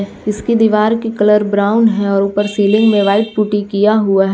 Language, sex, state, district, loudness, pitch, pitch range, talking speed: Hindi, female, Jharkhand, Palamu, -13 LUFS, 210 Hz, 200-220 Hz, 205 wpm